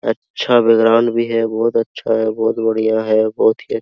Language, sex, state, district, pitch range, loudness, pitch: Hindi, male, Bihar, Araria, 110-115 Hz, -16 LUFS, 115 Hz